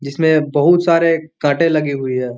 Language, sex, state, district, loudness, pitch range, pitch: Hindi, male, Bihar, Muzaffarpur, -15 LUFS, 140-165 Hz, 155 Hz